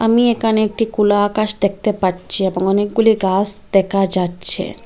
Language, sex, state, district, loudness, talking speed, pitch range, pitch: Bengali, female, Assam, Hailakandi, -16 LUFS, 150 wpm, 190-215 Hz, 205 Hz